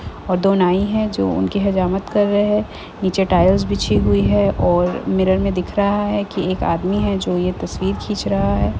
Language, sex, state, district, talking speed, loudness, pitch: Hindi, female, Chhattisgarh, Rajnandgaon, 210 wpm, -18 LUFS, 185 Hz